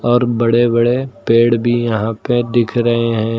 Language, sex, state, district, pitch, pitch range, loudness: Hindi, male, Uttar Pradesh, Lucknow, 120 Hz, 115-120 Hz, -15 LUFS